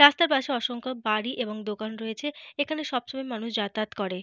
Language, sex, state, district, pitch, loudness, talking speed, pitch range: Bengali, female, Jharkhand, Jamtara, 240 Hz, -28 LUFS, 170 wpm, 215-280 Hz